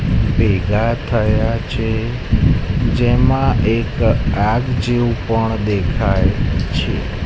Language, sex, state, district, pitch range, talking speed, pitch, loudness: Gujarati, male, Gujarat, Gandhinagar, 110-120 Hz, 85 wpm, 115 Hz, -17 LUFS